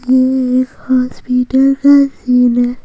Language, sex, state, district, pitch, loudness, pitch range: Hindi, female, Bihar, Patna, 255 Hz, -12 LUFS, 250-265 Hz